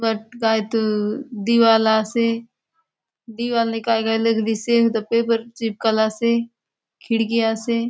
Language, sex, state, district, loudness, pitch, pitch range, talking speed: Halbi, female, Chhattisgarh, Bastar, -20 LUFS, 230 Hz, 220-235 Hz, 120 wpm